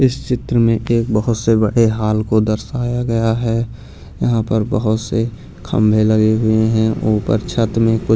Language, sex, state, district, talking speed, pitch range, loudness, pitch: Hindi, male, Punjab, Pathankot, 185 wpm, 110-115 Hz, -16 LUFS, 110 Hz